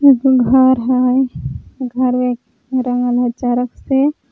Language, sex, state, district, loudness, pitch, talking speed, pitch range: Magahi, female, Jharkhand, Palamu, -15 LUFS, 250 Hz, 110 wpm, 245-260 Hz